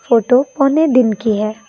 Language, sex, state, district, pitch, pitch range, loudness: Hindi, female, Assam, Kamrup Metropolitan, 245 Hz, 220-275 Hz, -14 LUFS